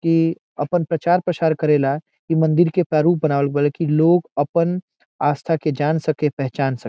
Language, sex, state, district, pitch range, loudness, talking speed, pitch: Bhojpuri, male, Bihar, Saran, 145-170 Hz, -19 LUFS, 185 wpm, 155 Hz